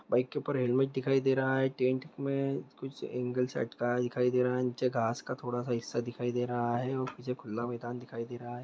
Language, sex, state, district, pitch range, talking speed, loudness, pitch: Hindi, male, West Bengal, Jhargram, 120-130 Hz, 245 wpm, -33 LUFS, 125 Hz